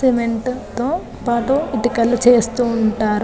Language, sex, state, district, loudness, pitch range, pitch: Telugu, female, Telangana, Nalgonda, -18 LUFS, 230-255 Hz, 240 Hz